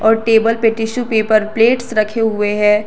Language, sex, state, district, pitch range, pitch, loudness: Hindi, female, Jharkhand, Garhwa, 215-230 Hz, 220 Hz, -14 LUFS